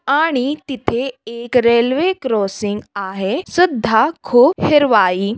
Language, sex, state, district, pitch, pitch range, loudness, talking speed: Marathi, female, Maharashtra, Sindhudurg, 240 Hz, 210-275 Hz, -16 LUFS, 100 wpm